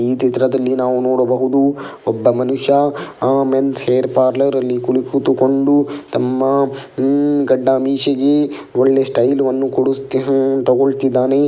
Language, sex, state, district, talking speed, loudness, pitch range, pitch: Kannada, male, Karnataka, Dakshina Kannada, 125 wpm, -15 LUFS, 130-140 Hz, 135 Hz